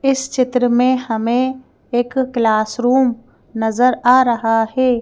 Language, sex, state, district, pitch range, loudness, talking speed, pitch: Hindi, female, Madhya Pradesh, Bhopal, 230-255 Hz, -16 LUFS, 120 wpm, 245 Hz